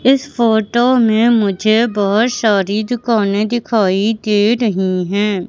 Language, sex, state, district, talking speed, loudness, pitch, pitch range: Hindi, female, Madhya Pradesh, Katni, 120 wpm, -14 LUFS, 220 Hz, 205-235 Hz